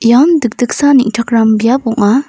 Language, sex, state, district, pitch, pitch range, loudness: Garo, female, Meghalaya, North Garo Hills, 240 Hz, 230-270 Hz, -11 LUFS